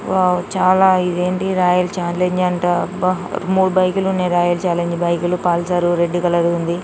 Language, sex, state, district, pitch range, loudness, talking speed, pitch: Telugu, female, Telangana, Nalgonda, 175-185 Hz, -17 LUFS, 150 wpm, 180 Hz